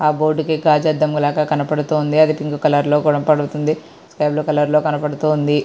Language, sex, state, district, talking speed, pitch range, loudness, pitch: Telugu, female, Andhra Pradesh, Srikakulam, 170 wpm, 150-155 Hz, -17 LUFS, 150 Hz